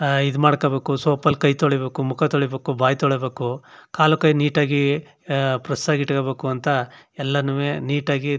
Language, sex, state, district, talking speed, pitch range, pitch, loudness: Kannada, male, Karnataka, Chamarajanagar, 150 wpm, 135-145 Hz, 140 Hz, -21 LUFS